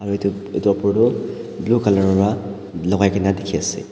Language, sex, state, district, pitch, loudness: Nagamese, male, Nagaland, Dimapur, 100 Hz, -19 LUFS